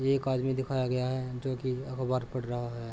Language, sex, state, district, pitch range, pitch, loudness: Hindi, male, Uttar Pradesh, Gorakhpur, 125-130 Hz, 130 Hz, -32 LUFS